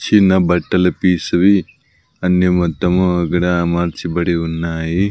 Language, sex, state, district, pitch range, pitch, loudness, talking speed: Telugu, male, Andhra Pradesh, Sri Satya Sai, 85-90 Hz, 90 Hz, -16 LUFS, 95 wpm